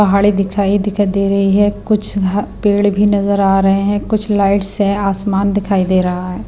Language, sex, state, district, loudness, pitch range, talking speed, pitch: Hindi, female, Himachal Pradesh, Shimla, -14 LUFS, 195-205 Hz, 205 wpm, 200 Hz